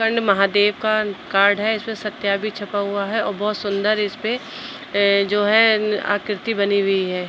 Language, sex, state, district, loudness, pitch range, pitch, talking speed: Hindi, female, Uttar Pradesh, Budaun, -19 LUFS, 200-215 Hz, 205 Hz, 175 wpm